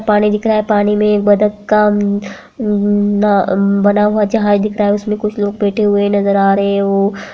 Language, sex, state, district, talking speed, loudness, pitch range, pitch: Hindi, female, Uttarakhand, Uttarkashi, 245 wpm, -13 LUFS, 200-210 Hz, 205 Hz